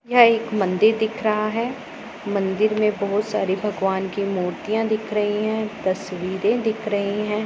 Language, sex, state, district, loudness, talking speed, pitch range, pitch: Hindi, female, Punjab, Pathankot, -22 LUFS, 160 wpm, 200-220 Hz, 210 Hz